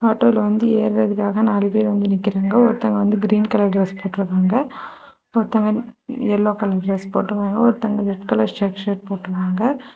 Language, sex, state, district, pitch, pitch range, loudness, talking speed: Tamil, female, Tamil Nadu, Kanyakumari, 210 Hz, 195-225 Hz, -18 LUFS, 145 wpm